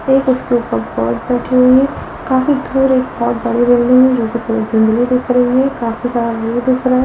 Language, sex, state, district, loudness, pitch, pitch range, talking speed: Hindi, female, Delhi, New Delhi, -14 LUFS, 245 Hz, 235-255 Hz, 195 wpm